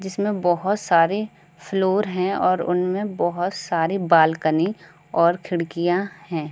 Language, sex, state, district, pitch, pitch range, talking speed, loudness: Hindi, female, Uttar Pradesh, Varanasi, 180 Hz, 170-195 Hz, 120 wpm, -21 LUFS